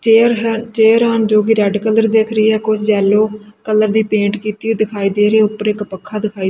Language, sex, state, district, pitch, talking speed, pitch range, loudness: Punjabi, female, Punjab, Kapurthala, 215 Hz, 240 wpm, 210-220 Hz, -14 LUFS